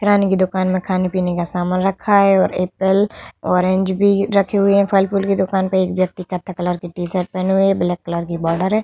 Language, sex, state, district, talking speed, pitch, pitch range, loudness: Hindi, female, Bihar, Vaishali, 245 wpm, 185 Hz, 180-195 Hz, -17 LUFS